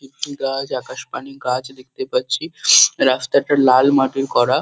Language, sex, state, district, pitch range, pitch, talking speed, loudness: Bengali, male, West Bengal, Kolkata, 130-140 Hz, 135 Hz, 145 wpm, -17 LUFS